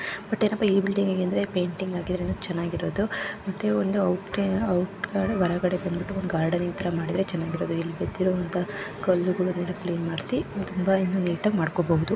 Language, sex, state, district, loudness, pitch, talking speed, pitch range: Kannada, female, Karnataka, Chamarajanagar, -26 LUFS, 185 Hz, 115 wpm, 175-195 Hz